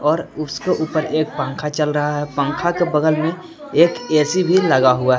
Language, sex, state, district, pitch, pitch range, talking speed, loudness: Hindi, male, Jharkhand, Palamu, 155 Hz, 150-170 Hz, 210 wpm, -18 LUFS